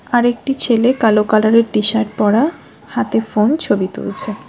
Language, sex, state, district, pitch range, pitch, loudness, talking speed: Bengali, female, West Bengal, Alipurduar, 215-245 Hz, 225 Hz, -15 LUFS, 135 wpm